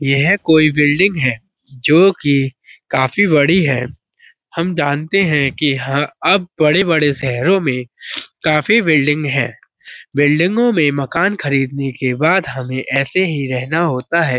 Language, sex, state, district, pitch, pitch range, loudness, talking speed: Hindi, male, Uttar Pradesh, Budaun, 145 Hz, 135-170 Hz, -15 LUFS, 135 wpm